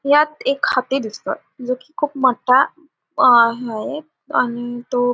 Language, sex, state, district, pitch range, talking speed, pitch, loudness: Marathi, female, Maharashtra, Solapur, 240-295 Hz, 140 wpm, 255 Hz, -18 LUFS